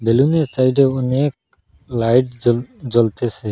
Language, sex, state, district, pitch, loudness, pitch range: Bengali, male, Assam, Hailakandi, 125 Hz, -17 LUFS, 115-130 Hz